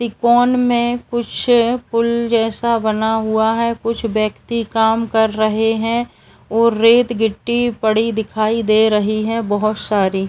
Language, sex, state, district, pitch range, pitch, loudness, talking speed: Hindi, male, Uttar Pradesh, Etah, 220-235 Hz, 225 Hz, -16 LUFS, 140 wpm